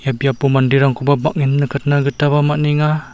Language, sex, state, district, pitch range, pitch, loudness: Garo, male, Meghalaya, South Garo Hills, 140-145 Hz, 140 Hz, -15 LUFS